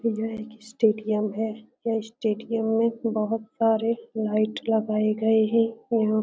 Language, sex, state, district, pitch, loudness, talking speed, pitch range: Hindi, female, Uttar Pradesh, Etah, 220 Hz, -25 LUFS, 155 wpm, 215-225 Hz